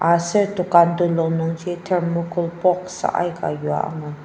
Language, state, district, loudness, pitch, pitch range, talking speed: Ao, Nagaland, Dimapur, -20 LUFS, 170 Hz, 165-175 Hz, 140 wpm